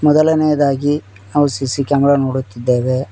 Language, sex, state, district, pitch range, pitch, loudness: Kannada, male, Karnataka, Koppal, 130-145 Hz, 140 Hz, -16 LUFS